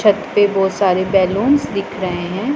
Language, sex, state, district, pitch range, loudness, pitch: Hindi, female, Punjab, Pathankot, 185-205 Hz, -16 LUFS, 195 Hz